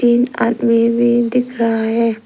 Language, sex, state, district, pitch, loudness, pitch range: Hindi, female, Arunachal Pradesh, Lower Dibang Valley, 235 Hz, -15 LUFS, 230-240 Hz